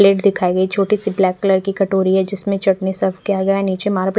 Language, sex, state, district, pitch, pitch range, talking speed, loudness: Hindi, female, Chandigarh, Chandigarh, 195 Hz, 190-200 Hz, 245 wpm, -17 LUFS